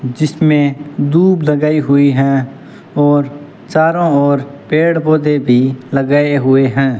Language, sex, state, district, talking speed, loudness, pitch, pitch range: Hindi, male, Rajasthan, Bikaner, 120 wpm, -13 LUFS, 145 Hz, 135-155 Hz